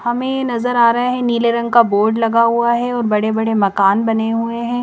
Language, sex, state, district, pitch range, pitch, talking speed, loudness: Hindi, female, Chandigarh, Chandigarh, 225-240 Hz, 235 Hz, 235 wpm, -15 LUFS